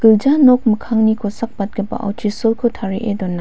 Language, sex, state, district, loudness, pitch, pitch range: Garo, female, Meghalaya, West Garo Hills, -16 LUFS, 220 Hz, 205-230 Hz